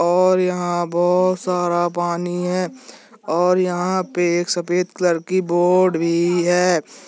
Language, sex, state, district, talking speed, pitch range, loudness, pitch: Hindi, male, Jharkhand, Sahebganj, 255 wpm, 175-180 Hz, -19 LUFS, 180 Hz